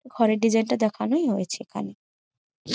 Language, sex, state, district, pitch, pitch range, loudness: Bengali, female, West Bengal, Jhargram, 225 Hz, 215-260 Hz, -24 LUFS